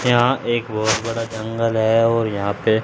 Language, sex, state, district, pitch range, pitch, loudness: Hindi, male, Haryana, Charkhi Dadri, 110-115 Hz, 115 Hz, -19 LUFS